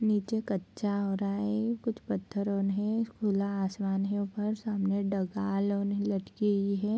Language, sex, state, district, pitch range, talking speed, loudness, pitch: Hindi, female, Bihar, Bhagalpur, 200-210 Hz, 170 wpm, -31 LUFS, 200 Hz